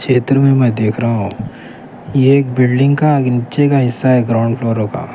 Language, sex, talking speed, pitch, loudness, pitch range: Urdu, male, 210 wpm, 125 Hz, -13 LUFS, 115-135 Hz